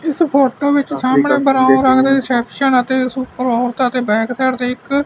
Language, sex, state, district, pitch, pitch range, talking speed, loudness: Punjabi, male, Punjab, Fazilka, 260 Hz, 250-280 Hz, 155 wpm, -15 LUFS